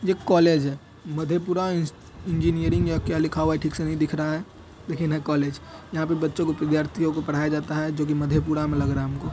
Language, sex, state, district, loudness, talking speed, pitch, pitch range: Hindi, male, Bihar, Madhepura, -24 LUFS, 230 wpm, 155 Hz, 150-165 Hz